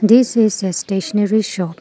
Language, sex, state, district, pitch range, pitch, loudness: English, female, Arunachal Pradesh, Lower Dibang Valley, 190-220 Hz, 205 Hz, -16 LUFS